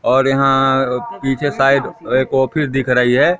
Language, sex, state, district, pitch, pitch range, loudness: Hindi, male, Madhya Pradesh, Katni, 135 Hz, 130-135 Hz, -15 LUFS